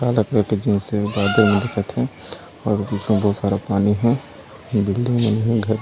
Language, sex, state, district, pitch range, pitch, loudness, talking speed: Chhattisgarhi, male, Chhattisgarh, Raigarh, 100-115 Hz, 105 Hz, -20 LUFS, 185 wpm